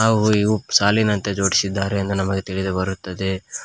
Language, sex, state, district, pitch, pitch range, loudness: Kannada, male, Karnataka, Koppal, 100 Hz, 95-105 Hz, -20 LUFS